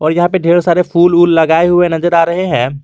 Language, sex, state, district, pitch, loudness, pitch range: Hindi, male, Jharkhand, Garhwa, 175 Hz, -11 LUFS, 165-175 Hz